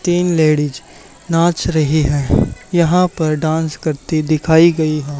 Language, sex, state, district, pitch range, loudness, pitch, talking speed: Hindi, male, Haryana, Charkhi Dadri, 155-170 Hz, -15 LUFS, 160 Hz, 140 wpm